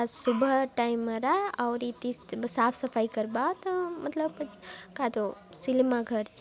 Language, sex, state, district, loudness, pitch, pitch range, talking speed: Halbi, female, Chhattisgarh, Bastar, -29 LUFS, 245 Hz, 230-285 Hz, 140 wpm